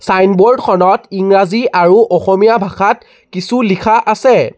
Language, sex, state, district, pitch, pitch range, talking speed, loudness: Assamese, male, Assam, Sonitpur, 195 Hz, 190-230 Hz, 120 wpm, -11 LUFS